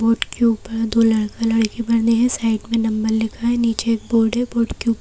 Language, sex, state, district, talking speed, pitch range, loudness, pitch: Hindi, female, Madhya Pradesh, Bhopal, 240 wpm, 225-230 Hz, -19 LUFS, 230 Hz